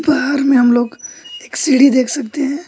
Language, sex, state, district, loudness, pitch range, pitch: Hindi, male, West Bengal, Alipurduar, -14 LUFS, 255-290 Hz, 275 Hz